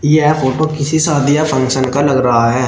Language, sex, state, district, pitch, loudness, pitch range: Hindi, male, Uttar Pradesh, Shamli, 145 Hz, -13 LUFS, 130-155 Hz